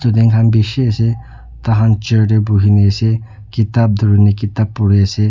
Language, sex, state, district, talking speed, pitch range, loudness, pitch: Nagamese, male, Nagaland, Dimapur, 170 wpm, 105-115 Hz, -13 LUFS, 110 Hz